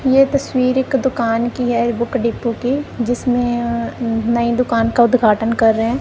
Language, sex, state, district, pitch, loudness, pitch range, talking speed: Hindi, male, Punjab, Kapurthala, 240 Hz, -17 LUFS, 230-255 Hz, 180 wpm